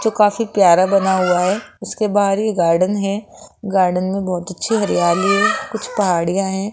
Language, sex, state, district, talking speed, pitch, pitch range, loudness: Hindi, female, Rajasthan, Jaipur, 180 wpm, 195 Hz, 180-210 Hz, -17 LUFS